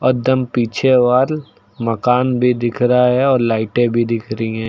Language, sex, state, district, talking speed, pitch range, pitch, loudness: Hindi, male, Uttar Pradesh, Lucknow, 190 wpm, 115-130 Hz, 125 Hz, -16 LUFS